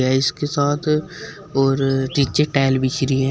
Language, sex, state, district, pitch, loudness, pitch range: Hindi, male, Uttar Pradesh, Shamli, 135 Hz, -19 LUFS, 135-150 Hz